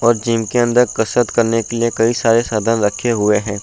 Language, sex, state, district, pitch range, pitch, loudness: Hindi, male, Uttar Pradesh, Budaun, 110-120 Hz, 115 Hz, -16 LUFS